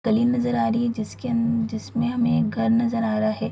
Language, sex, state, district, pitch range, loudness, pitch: Hindi, female, Bihar, Sitamarhi, 220-235 Hz, -23 LUFS, 230 Hz